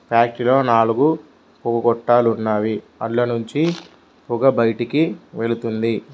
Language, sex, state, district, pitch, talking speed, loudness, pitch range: Telugu, male, Telangana, Mahabubabad, 120 Hz, 110 wpm, -19 LUFS, 115-130 Hz